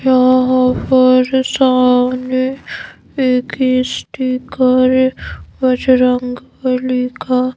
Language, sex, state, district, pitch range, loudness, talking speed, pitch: Hindi, female, Madhya Pradesh, Bhopal, 255-260 Hz, -14 LUFS, 55 wpm, 255 Hz